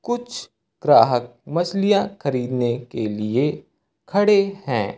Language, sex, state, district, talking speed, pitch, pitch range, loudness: Hindi, male, Uttar Pradesh, Lucknow, 95 wpm, 145 Hz, 120-200 Hz, -20 LUFS